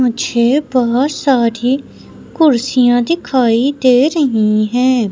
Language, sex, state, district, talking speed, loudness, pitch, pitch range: Hindi, female, Madhya Pradesh, Umaria, 95 wpm, -13 LUFS, 250 Hz, 235-275 Hz